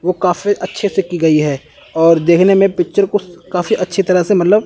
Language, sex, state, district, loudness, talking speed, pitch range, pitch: Hindi, male, Chandigarh, Chandigarh, -14 LUFS, 220 wpm, 170-195 Hz, 180 Hz